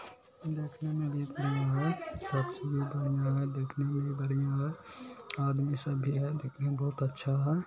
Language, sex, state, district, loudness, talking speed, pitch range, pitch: Hindi, male, Bihar, Araria, -33 LUFS, 185 wpm, 140-150 Hz, 140 Hz